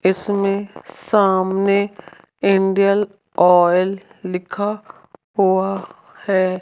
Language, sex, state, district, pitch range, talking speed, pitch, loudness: Hindi, female, Rajasthan, Jaipur, 190-200 Hz, 65 wpm, 195 Hz, -18 LUFS